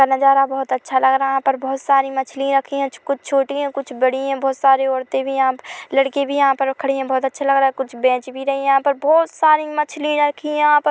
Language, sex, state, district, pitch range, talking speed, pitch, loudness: Hindi, female, Chhattisgarh, Korba, 265-280 Hz, 275 wpm, 270 Hz, -18 LUFS